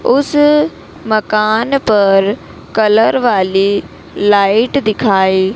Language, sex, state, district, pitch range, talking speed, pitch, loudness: Hindi, female, Madhya Pradesh, Dhar, 200-255 Hz, 75 wpm, 215 Hz, -12 LUFS